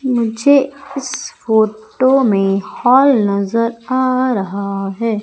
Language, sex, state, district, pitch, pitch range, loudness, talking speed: Hindi, female, Madhya Pradesh, Umaria, 230 Hz, 210-260 Hz, -15 LUFS, 105 wpm